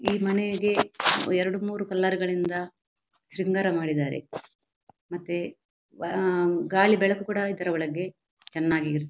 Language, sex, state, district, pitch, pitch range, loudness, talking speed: Kannada, female, Karnataka, Dakshina Kannada, 185 Hz, 170-195 Hz, -26 LUFS, 120 wpm